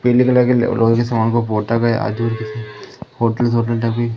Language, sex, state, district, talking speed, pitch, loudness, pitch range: Hindi, female, Madhya Pradesh, Umaria, 215 wpm, 115 Hz, -17 LUFS, 115-120 Hz